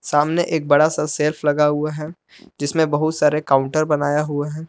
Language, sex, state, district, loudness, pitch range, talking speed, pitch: Hindi, male, Jharkhand, Palamu, -19 LUFS, 145-155 Hz, 190 wpm, 150 Hz